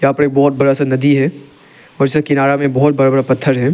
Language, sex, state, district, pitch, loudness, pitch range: Hindi, male, Arunachal Pradesh, Lower Dibang Valley, 140 Hz, -13 LUFS, 135-145 Hz